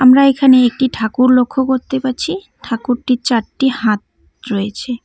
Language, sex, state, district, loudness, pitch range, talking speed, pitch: Bengali, female, West Bengal, Cooch Behar, -15 LUFS, 235-265 Hz, 130 wpm, 255 Hz